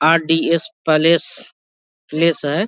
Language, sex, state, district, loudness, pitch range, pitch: Hindi, male, Bihar, Vaishali, -16 LUFS, 150-170 Hz, 165 Hz